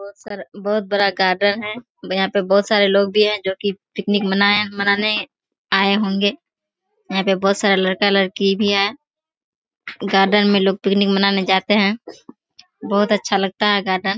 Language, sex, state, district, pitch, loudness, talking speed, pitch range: Hindi, female, Bihar, Kishanganj, 200 Hz, -17 LUFS, 170 wpm, 195-210 Hz